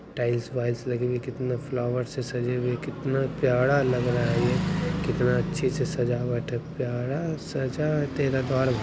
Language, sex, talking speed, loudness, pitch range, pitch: Maithili, male, 175 wpm, -27 LUFS, 125-140 Hz, 130 Hz